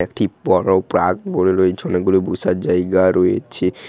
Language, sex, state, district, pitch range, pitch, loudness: Bengali, male, West Bengal, Dakshin Dinajpur, 90-95 Hz, 95 Hz, -17 LUFS